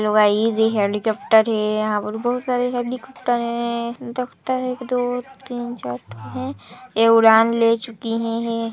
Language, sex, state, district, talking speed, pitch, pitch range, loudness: Hindi, female, Chhattisgarh, Sarguja, 160 wpm, 230 Hz, 215-245 Hz, -20 LUFS